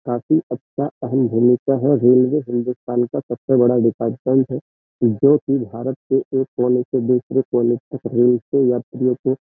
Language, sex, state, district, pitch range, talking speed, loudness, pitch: Hindi, male, Uttar Pradesh, Jyotiba Phule Nagar, 120-135 Hz, 160 wpm, -18 LUFS, 125 Hz